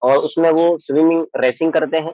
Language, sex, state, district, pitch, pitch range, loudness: Hindi, male, Uttar Pradesh, Jyotiba Phule Nagar, 160 Hz, 155-165 Hz, -16 LUFS